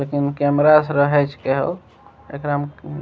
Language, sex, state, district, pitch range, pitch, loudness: Maithili, male, Bihar, Begusarai, 140-145 Hz, 145 Hz, -18 LUFS